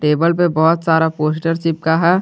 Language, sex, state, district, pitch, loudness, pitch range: Hindi, male, Jharkhand, Garhwa, 165 Hz, -16 LUFS, 160-170 Hz